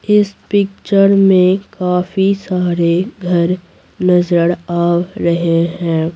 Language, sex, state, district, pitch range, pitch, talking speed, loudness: Hindi, female, Bihar, Patna, 170-195 Hz, 180 Hz, 95 wpm, -14 LUFS